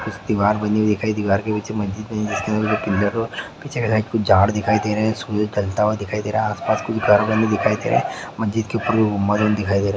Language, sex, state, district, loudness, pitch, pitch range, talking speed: Hindi, male, Bihar, Gopalganj, -20 LUFS, 105 Hz, 105-110 Hz, 265 wpm